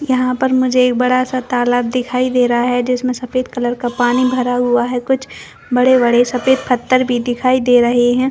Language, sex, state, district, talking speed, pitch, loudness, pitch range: Hindi, female, Chhattisgarh, Bastar, 215 wpm, 250 Hz, -15 LUFS, 245-255 Hz